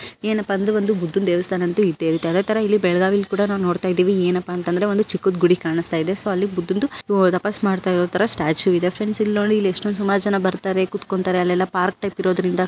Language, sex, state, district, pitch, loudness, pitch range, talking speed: Kannada, female, Karnataka, Belgaum, 190 Hz, -19 LUFS, 180-205 Hz, 190 wpm